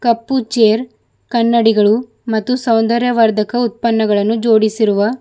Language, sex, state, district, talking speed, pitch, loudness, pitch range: Kannada, female, Karnataka, Bidar, 105 wpm, 230 Hz, -14 LUFS, 220-240 Hz